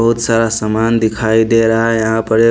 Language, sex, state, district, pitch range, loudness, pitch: Hindi, male, Punjab, Pathankot, 110-115 Hz, -13 LUFS, 115 Hz